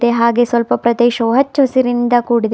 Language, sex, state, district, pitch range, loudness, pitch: Kannada, female, Karnataka, Bidar, 235-245 Hz, -14 LUFS, 240 Hz